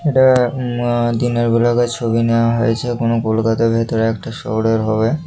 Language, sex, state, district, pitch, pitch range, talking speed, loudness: Bengali, male, West Bengal, North 24 Parganas, 115 Hz, 115-120 Hz, 160 wpm, -16 LUFS